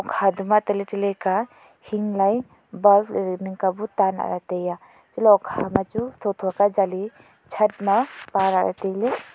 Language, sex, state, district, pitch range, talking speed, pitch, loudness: Wancho, female, Arunachal Pradesh, Longding, 190-210 Hz, 175 wpm, 200 Hz, -22 LUFS